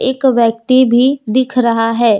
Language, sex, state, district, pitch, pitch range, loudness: Hindi, female, Jharkhand, Deoghar, 245 Hz, 230-260 Hz, -12 LUFS